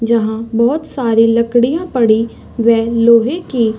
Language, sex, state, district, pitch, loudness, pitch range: Hindi, female, Chhattisgarh, Raigarh, 230 Hz, -13 LUFS, 225-240 Hz